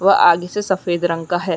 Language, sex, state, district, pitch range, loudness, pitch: Hindi, female, Uttarakhand, Uttarkashi, 175-190 Hz, -17 LUFS, 175 Hz